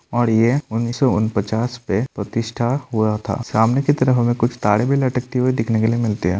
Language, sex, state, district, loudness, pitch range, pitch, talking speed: Hindi, male, Bihar, Kishanganj, -19 LUFS, 110-125 Hz, 120 Hz, 215 wpm